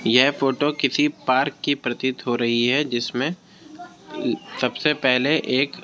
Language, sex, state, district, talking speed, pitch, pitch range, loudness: Hindi, male, Uttar Pradesh, Jyotiba Phule Nagar, 135 wpm, 140 Hz, 125-150 Hz, -21 LUFS